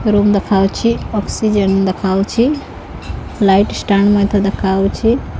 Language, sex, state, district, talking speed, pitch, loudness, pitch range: Odia, female, Odisha, Khordha, 90 wpm, 200 Hz, -14 LUFS, 195-215 Hz